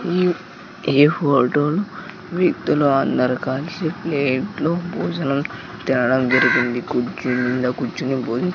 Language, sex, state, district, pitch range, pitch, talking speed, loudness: Telugu, male, Andhra Pradesh, Sri Satya Sai, 130-175 Hz, 140 Hz, 110 wpm, -20 LUFS